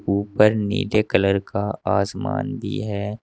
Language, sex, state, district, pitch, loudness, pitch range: Hindi, male, Uttar Pradesh, Saharanpur, 105 Hz, -22 LUFS, 100-105 Hz